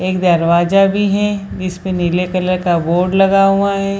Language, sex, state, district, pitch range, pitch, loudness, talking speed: Hindi, female, Bihar, Purnia, 180-195 Hz, 185 Hz, -14 LUFS, 180 wpm